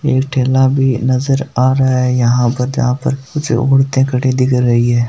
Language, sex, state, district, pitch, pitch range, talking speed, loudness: Marwari, male, Rajasthan, Nagaur, 130 Hz, 125-135 Hz, 200 wpm, -14 LUFS